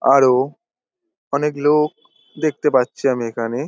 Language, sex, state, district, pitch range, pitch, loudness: Bengali, male, West Bengal, Dakshin Dinajpur, 130-155 Hz, 145 Hz, -18 LUFS